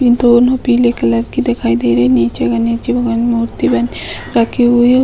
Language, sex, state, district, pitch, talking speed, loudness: Hindi, female, Uttar Pradesh, Hamirpur, 230 Hz, 200 wpm, -13 LUFS